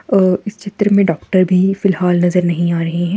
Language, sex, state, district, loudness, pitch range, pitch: Hindi, female, Himachal Pradesh, Shimla, -15 LUFS, 175-200 Hz, 185 Hz